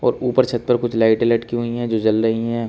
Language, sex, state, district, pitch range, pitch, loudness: Hindi, male, Uttar Pradesh, Shamli, 115-120 Hz, 115 Hz, -18 LUFS